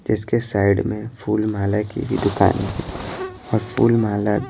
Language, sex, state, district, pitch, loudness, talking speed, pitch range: Hindi, male, Bihar, Patna, 105 Hz, -21 LUFS, 135 wpm, 105-115 Hz